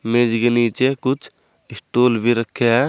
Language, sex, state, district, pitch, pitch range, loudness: Hindi, male, Uttar Pradesh, Saharanpur, 120 Hz, 115-125 Hz, -18 LUFS